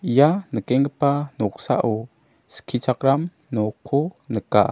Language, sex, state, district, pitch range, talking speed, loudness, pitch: Garo, male, Meghalaya, South Garo Hills, 115-145 Hz, 75 wpm, -22 LUFS, 135 Hz